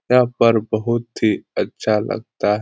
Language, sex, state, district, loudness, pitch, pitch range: Hindi, male, Bihar, Lakhisarai, -19 LUFS, 115 Hz, 105-120 Hz